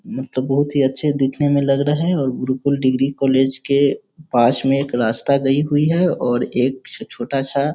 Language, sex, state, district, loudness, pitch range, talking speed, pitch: Hindi, male, Bihar, Sitamarhi, -18 LUFS, 130-145 Hz, 200 wpm, 135 Hz